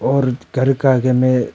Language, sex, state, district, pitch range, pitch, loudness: Hindi, male, Arunachal Pradesh, Papum Pare, 125-135 Hz, 130 Hz, -16 LUFS